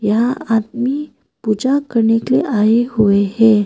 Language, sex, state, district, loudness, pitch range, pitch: Hindi, female, Arunachal Pradesh, Papum Pare, -15 LUFS, 215-255 Hz, 225 Hz